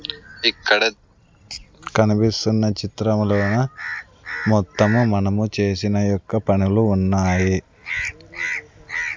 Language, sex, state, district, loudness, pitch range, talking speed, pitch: Telugu, male, Andhra Pradesh, Sri Satya Sai, -20 LUFS, 100-110 Hz, 60 wpm, 105 Hz